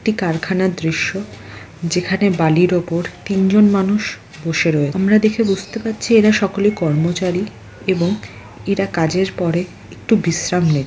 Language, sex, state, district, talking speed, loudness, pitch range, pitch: Bengali, female, West Bengal, Malda, 130 wpm, -17 LUFS, 165-200 Hz, 185 Hz